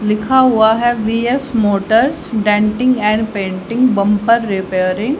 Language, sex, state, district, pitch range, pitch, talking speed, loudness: Hindi, female, Haryana, Charkhi Dadri, 205-240 Hz, 220 Hz, 125 wpm, -14 LUFS